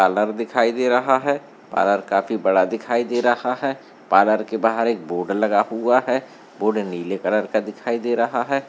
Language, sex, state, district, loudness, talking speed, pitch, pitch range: Hindi, male, Bihar, Darbhanga, -20 LUFS, 195 wpm, 115 Hz, 105-120 Hz